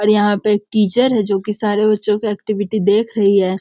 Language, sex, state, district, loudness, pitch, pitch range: Hindi, female, Bihar, Sitamarhi, -16 LUFS, 210 Hz, 205-215 Hz